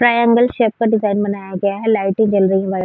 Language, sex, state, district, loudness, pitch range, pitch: Hindi, female, Uttar Pradesh, Varanasi, -16 LUFS, 195-230 Hz, 205 Hz